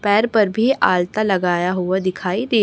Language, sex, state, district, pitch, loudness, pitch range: Hindi, female, Chhattisgarh, Raipur, 200 Hz, -18 LUFS, 180-215 Hz